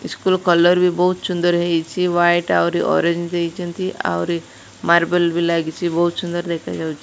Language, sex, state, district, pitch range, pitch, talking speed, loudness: Odia, female, Odisha, Malkangiri, 170-175 Hz, 175 Hz, 145 wpm, -18 LUFS